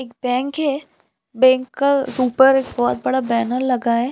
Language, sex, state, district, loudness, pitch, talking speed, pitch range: Hindi, female, Chhattisgarh, Balrampur, -18 LUFS, 255 Hz, 190 wpm, 240-270 Hz